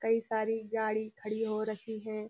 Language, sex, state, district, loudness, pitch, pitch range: Hindi, female, Uttarakhand, Uttarkashi, -34 LUFS, 220 Hz, 215-225 Hz